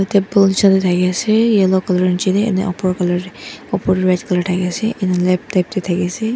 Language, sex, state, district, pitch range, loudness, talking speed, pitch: Nagamese, female, Nagaland, Dimapur, 180-200 Hz, -16 LUFS, 160 wpm, 185 Hz